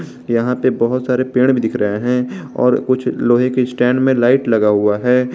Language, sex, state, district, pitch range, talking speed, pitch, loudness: Hindi, male, Jharkhand, Garhwa, 115-125 Hz, 200 wpm, 125 Hz, -15 LUFS